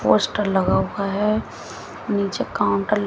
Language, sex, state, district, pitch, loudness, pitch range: Hindi, female, Haryana, Jhajjar, 200 Hz, -21 LUFS, 195-210 Hz